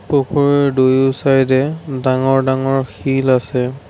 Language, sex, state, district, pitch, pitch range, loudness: Assamese, male, Assam, Sonitpur, 135 Hz, 130-140 Hz, -15 LUFS